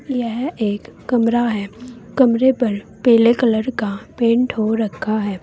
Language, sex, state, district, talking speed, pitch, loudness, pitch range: Hindi, female, Uttar Pradesh, Saharanpur, 145 wpm, 230 Hz, -18 LUFS, 215-245 Hz